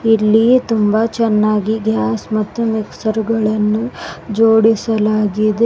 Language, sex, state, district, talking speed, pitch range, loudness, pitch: Kannada, female, Karnataka, Bidar, 85 wpm, 215-225 Hz, -15 LUFS, 220 Hz